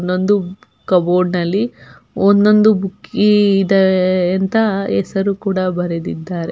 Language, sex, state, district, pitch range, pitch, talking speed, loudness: Kannada, female, Karnataka, Belgaum, 180-205 Hz, 190 Hz, 100 wpm, -15 LUFS